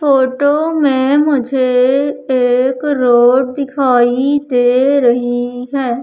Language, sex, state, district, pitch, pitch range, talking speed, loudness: Hindi, female, Madhya Pradesh, Umaria, 260 Hz, 250-280 Hz, 90 wpm, -13 LUFS